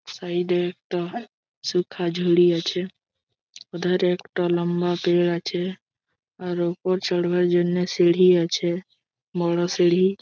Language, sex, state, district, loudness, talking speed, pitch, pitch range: Bengali, male, West Bengal, Malda, -23 LUFS, 110 wpm, 175 Hz, 175-180 Hz